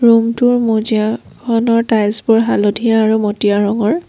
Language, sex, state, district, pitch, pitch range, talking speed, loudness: Assamese, female, Assam, Kamrup Metropolitan, 225 Hz, 215-230 Hz, 100 wpm, -14 LUFS